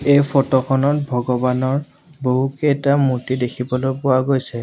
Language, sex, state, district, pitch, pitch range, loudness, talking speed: Assamese, male, Assam, Sonitpur, 135 Hz, 125-140 Hz, -18 LUFS, 115 wpm